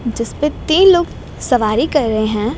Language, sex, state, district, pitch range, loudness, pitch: Hindi, female, Gujarat, Gandhinagar, 220-300 Hz, -14 LUFS, 250 Hz